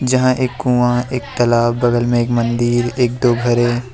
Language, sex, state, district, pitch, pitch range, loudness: Hindi, male, Jharkhand, Deoghar, 120 Hz, 120-125 Hz, -16 LUFS